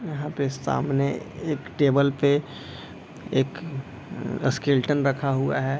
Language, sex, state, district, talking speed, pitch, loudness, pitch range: Hindi, male, Bihar, East Champaran, 115 wpm, 140 Hz, -25 LUFS, 135-145 Hz